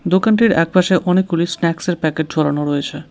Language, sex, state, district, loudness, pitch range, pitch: Bengali, male, West Bengal, Cooch Behar, -16 LUFS, 155-185 Hz, 170 Hz